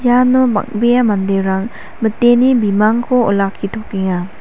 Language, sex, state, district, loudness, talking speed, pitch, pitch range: Garo, female, Meghalaya, West Garo Hills, -14 LUFS, 80 wpm, 220 Hz, 195-245 Hz